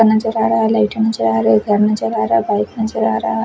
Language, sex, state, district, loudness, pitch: Hindi, female, Chhattisgarh, Raipur, -16 LUFS, 115 Hz